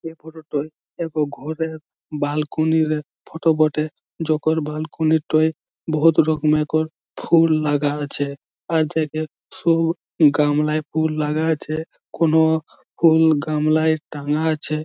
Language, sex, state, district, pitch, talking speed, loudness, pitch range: Bengali, male, West Bengal, Malda, 155 Hz, 115 wpm, -20 LUFS, 150-160 Hz